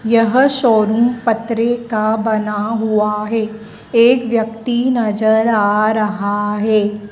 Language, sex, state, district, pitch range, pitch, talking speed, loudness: Hindi, female, Madhya Pradesh, Dhar, 215-230 Hz, 220 Hz, 110 wpm, -15 LUFS